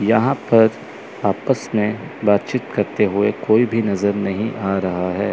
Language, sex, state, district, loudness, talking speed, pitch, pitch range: Hindi, male, Chandigarh, Chandigarh, -19 LUFS, 155 wpm, 105 Hz, 95-110 Hz